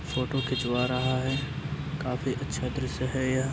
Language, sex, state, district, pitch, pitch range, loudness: Hindi, male, Uttar Pradesh, Varanasi, 130 Hz, 130-135 Hz, -29 LUFS